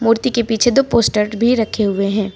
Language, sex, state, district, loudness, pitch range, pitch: Hindi, female, Uttar Pradesh, Lucknow, -16 LUFS, 210-235 Hz, 225 Hz